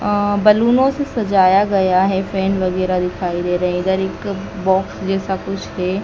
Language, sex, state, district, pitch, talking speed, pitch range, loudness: Hindi, female, Madhya Pradesh, Dhar, 190 Hz, 180 wpm, 185-200 Hz, -17 LUFS